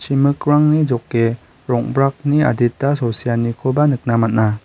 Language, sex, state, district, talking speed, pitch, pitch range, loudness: Garo, male, Meghalaya, West Garo Hills, 90 wpm, 130 Hz, 115-145 Hz, -17 LUFS